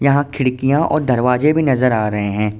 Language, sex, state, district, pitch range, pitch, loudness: Hindi, male, Uttar Pradesh, Ghazipur, 110-140 Hz, 130 Hz, -16 LUFS